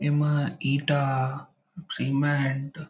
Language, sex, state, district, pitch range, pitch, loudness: Chhattisgarhi, male, Chhattisgarh, Bilaspur, 135-150 Hz, 145 Hz, -26 LUFS